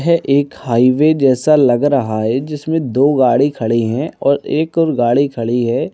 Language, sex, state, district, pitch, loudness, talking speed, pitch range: Hindi, male, Bihar, Bhagalpur, 140 Hz, -14 LUFS, 180 wpm, 120-150 Hz